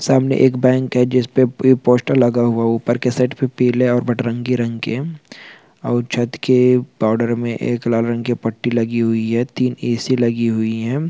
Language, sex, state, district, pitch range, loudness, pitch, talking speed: Hindi, male, Chhattisgarh, Bastar, 115-125 Hz, -17 LUFS, 120 Hz, 210 wpm